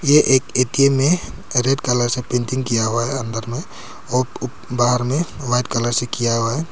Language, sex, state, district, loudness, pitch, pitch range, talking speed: Hindi, male, Arunachal Pradesh, Papum Pare, -19 LUFS, 125 Hz, 120-135 Hz, 205 wpm